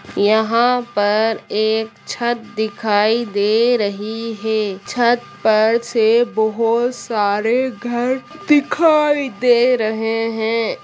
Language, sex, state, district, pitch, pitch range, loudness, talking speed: Hindi, female, Bihar, Darbhanga, 230 Hz, 220-240 Hz, -17 LUFS, 100 wpm